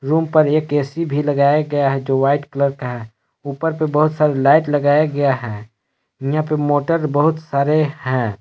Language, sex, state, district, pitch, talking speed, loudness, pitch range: Hindi, male, Jharkhand, Palamu, 145 Hz, 195 wpm, -17 LUFS, 135-155 Hz